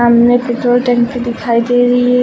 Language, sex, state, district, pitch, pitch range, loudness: Hindi, female, Uttar Pradesh, Lucknow, 245 Hz, 240-245 Hz, -12 LUFS